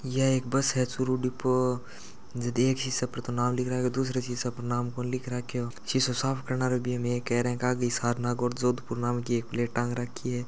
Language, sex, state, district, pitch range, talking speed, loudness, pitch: Hindi, male, Rajasthan, Churu, 120-130 Hz, 195 wpm, -29 LUFS, 125 Hz